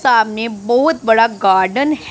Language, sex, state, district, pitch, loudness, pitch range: Hindi, female, Punjab, Pathankot, 230 Hz, -14 LUFS, 215-255 Hz